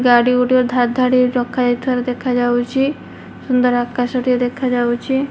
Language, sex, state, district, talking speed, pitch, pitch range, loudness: Odia, female, Odisha, Malkangiri, 115 wpm, 250 Hz, 245-255 Hz, -17 LUFS